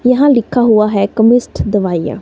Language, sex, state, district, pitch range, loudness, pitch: Hindi, female, Himachal Pradesh, Shimla, 200-245 Hz, -12 LUFS, 225 Hz